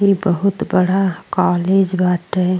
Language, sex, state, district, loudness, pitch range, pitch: Bhojpuri, female, Uttar Pradesh, Ghazipur, -17 LUFS, 180-195 Hz, 185 Hz